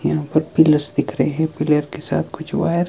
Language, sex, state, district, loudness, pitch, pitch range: Hindi, male, Himachal Pradesh, Shimla, -19 LUFS, 155 Hz, 150-160 Hz